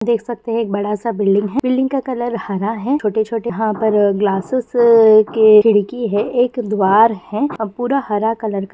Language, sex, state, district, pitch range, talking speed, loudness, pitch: Hindi, female, Bihar, Bhagalpur, 210-240 Hz, 200 wpm, -16 LUFS, 220 Hz